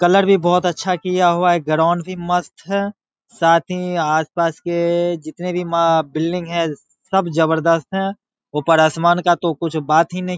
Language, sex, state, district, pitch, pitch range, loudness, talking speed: Hindi, male, Bihar, Saharsa, 175 Hz, 165-180 Hz, -18 LUFS, 185 wpm